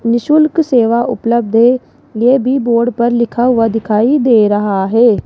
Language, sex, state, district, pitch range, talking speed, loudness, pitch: Hindi, female, Rajasthan, Jaipur, 225-250 Hz, 160 wpm, -12 LUFS, 235 Hz